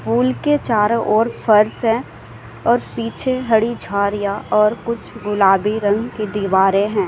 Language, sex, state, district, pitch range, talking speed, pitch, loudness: Hindi, female, Uttar Pradesh, Lalitpur, 205-235 Hz, 135 wpm, 215 Hz, -17 LUFS